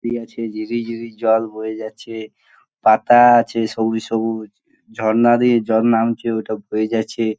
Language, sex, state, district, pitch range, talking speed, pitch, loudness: Bengali, male, West Bengal, Purulia, 110-115 Hz, 155 wpm, 115 Hz, -18 LUFS